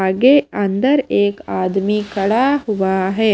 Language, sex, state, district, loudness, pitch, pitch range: Hindi, female, Himachal Pradesh, Shimla, -16 LUFS, 205 Hz, 195-250 Hz